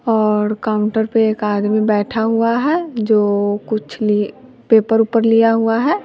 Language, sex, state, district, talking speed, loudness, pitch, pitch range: Hindi, male, Bihar, West Champaran, 160 wpm, -16 LUFS, 220 Hz, 210-225 Hz